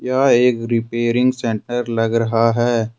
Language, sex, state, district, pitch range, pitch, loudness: Hindi, male, Jharkhand, Ranchi, 115-120 Hz, 115 Hz, -17 LUFS